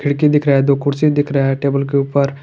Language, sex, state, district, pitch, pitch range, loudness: Hindi, male, Jharkhand, Garhwa, 140 Hz, 140-145 Hz, -15 LUFS